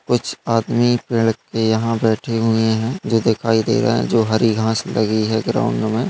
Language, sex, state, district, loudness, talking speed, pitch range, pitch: Hindi, male, Bihar, Bhagalpur, -18 LUFS, 205 wpm, 110-115 Hz, 115 Hz